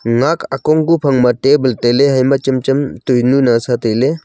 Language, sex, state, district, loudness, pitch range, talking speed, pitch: Wancho, male, Arunachal Pradesh, Longding, -13 LUFS, 125-140 Hz, 155 wpm, 130 Hz